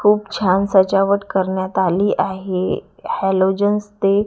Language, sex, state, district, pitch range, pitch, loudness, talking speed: Marathi, female, Maharashtra, Gondia, 190-200 Hz, 195 Hz, -18 LUFS, 110 wpm